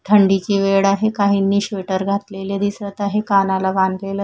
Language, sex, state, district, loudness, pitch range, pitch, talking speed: Marathi, female, Maharashtra, Mumbai Suburban, -18 LUFS, 195-200 Hz, 200 Hz, 140 wpm